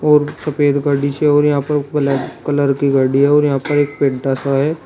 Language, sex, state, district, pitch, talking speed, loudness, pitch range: Hindi, male, Uttar Pradesh, Shamli, 145 Hz, 235 wpm, -15 LUFS, 140-150 Hz